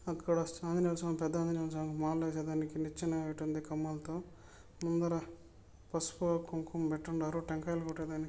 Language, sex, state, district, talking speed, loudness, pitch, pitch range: Telugu, male, Andhra Pradesh, Chittoor, 130 wpm, -37 LUFS, 160 Hz, 155-170 Hz